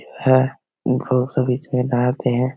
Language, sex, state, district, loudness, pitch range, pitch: Hindi, male, Bihar, Begusarai, -20 LUFS, 125-130 Hz, 130 Hz